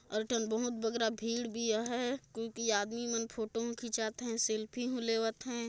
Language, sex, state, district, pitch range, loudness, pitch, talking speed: Chhattisgarhi, female, Chhattisgarh, Jashpur, 225-235 Hz, -35 LUFS, 230 Hz, 200 wpm